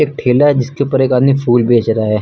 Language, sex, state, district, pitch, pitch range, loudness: Hindi, male, Uttar Pradesh, Lucknow, 125 Hz, 120-140 Hz, -12 LUFS